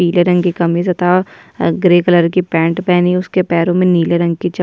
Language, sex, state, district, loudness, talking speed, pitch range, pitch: Hindi, female, Chhattisgarh, Sukma, -13 LUFS, 235 wpm, 170-180 Hz, 175 Hz